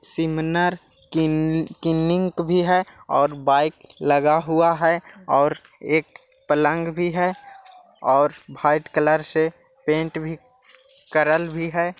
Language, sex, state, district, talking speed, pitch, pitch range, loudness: Hindi, male, Bihar, Jahanabad, 120 wpm, 160 Hz, 155-180 Hz, -21 LUFS